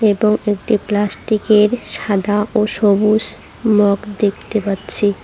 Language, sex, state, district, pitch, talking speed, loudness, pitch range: Bengali, female, West Bengal, Cooch Behar, 210 Hz, 105 wpm, -16 LUFS, 205-215 Hz